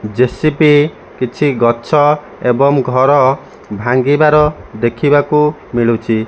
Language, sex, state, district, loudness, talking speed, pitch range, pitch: Odia, male, Odisha, Malkangiri, -13 LUFS, 75 wpm, 120-150 Hz, 135 Hz